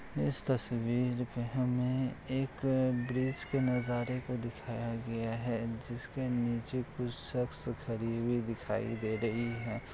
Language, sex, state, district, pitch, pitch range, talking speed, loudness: Hindi, male, Bihar, Kishanganj, 120 Hz, 115-125 Hz, 135 wpm, -35 LUFS